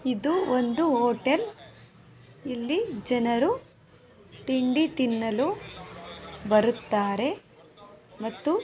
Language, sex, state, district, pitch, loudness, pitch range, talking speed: Kannada, female, Karnataka, Mysore, 255 Hz, -26 LUFS, 230-315 Hz, 70 wpm